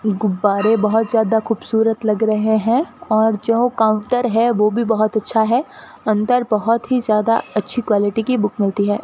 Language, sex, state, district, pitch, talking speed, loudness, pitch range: Hindi, female, Rajasthan, Bikaner, 220 Hz, 170 wpm, -17 LUFS, 215-235 Hz